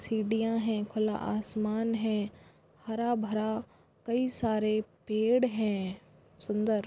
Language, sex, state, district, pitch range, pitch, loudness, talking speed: Hindi, female, Goa, North and South Goa, 215-225 Hz, 220 Hz, -31 LUFS, 105 wpm